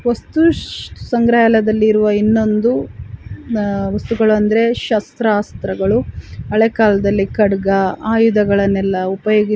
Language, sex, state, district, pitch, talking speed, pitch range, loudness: Kannada, female, Karnataka, Chamarajanagar, 215 Hz, 95 wpm, 200-225 Hz, -15 LUFS